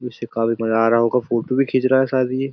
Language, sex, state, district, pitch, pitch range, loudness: Hindi, male, Uttar Pradesh, Budaun, 125 Hz, 115-130 Hz, -19 LUFS